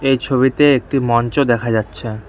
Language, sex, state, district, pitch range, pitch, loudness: Bengali, male, West Bengal, Cooch Behar, 115-135 Hz, 125 Hz, -16 LUFS